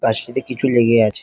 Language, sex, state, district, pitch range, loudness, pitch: Bengali, male, West Bengal, Jhargram, 115-130 Hz, -17 LUFS, 120 Hz